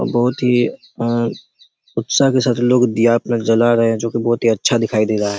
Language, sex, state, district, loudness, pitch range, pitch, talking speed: Hindi, male, Chhattisgarh, Raigarh, -16 LUFS, 115-120 Hz, 115 Hz, 220 wpm